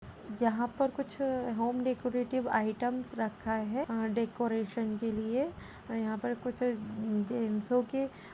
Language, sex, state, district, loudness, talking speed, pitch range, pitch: Hindi, female, Uttar Pradesh, Budaun, -33 LUFS, 135 wpm, 220-250 Hz, 235 Hz